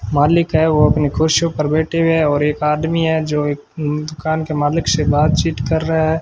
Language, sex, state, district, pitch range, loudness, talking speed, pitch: Hindi, male, Rajasthan, Bikaner, 150-160 Hz, -16 LUFS, 220 wpm, 155 Hz